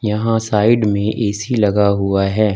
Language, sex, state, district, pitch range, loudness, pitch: Hindi, male, Uttar Pradesh, Lucknow, 100-110 Hz, -16 LUFS, 105 Hz